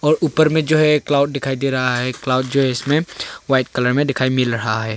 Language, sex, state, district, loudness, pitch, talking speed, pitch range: Hindi, male, Arunachal Pradesh, Longding, -18 LUFS, 135 Hz, 240 wpm, 125-150 Hz